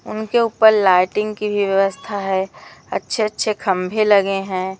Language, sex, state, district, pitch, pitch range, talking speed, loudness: Hindi, female, Madhya Pradesh, Umaria, 205 Hz, 190-215 Hz, 150 wpm, -18 LUFS